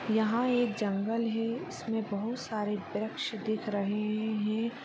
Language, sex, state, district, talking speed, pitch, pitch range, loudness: Hindi, female, Chhattisgarh, Sarguja, 135 wpm, 220 Hz, 210-230 Hz, -32 LUFS